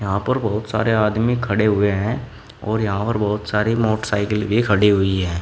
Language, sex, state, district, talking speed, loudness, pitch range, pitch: Hindi, male, Uttar Pradesh, Shamli, 200 wpm, -19 LUFS, 105-110 Hz, 105 Hz